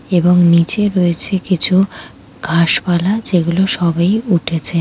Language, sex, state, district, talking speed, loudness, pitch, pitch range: Bengali, female, West Bengal, Jhargram, 125 wpm, -14 LUFS, 180 Hz, 170-190 Hz